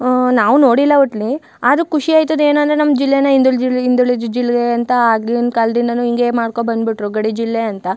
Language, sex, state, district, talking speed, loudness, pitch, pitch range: Kannada, female, Karnataka, Chamarajanagar, 180 wpm, -14 LUFS, 245 Hz, 230-275 Hz